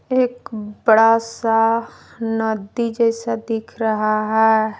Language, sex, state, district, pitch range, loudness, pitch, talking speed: Hindi, female, Jharkhand, Palamu, 220-230 Hz, -18 LUFS, 225 Hz, 100 wpm